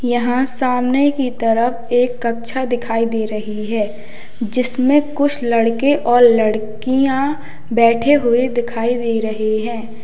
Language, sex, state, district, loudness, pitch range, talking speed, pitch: Hindi, male, Uttar Pradesh, Lalitpur, -17 LUFS, 225-255 Hz, 125 wpm, 240 Hz